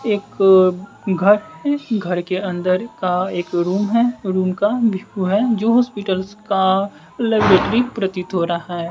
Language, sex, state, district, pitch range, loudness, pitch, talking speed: Hindi, male, Bihar, West Champaran, 185-215 Hz, -18 LUFS, 195 Hz, 150 wpm